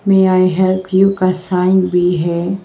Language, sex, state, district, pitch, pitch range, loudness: Hindi, female, Arunachal Pradesh, Papum Pare, 185 Hz, 180-190 Hz, -14 LUFS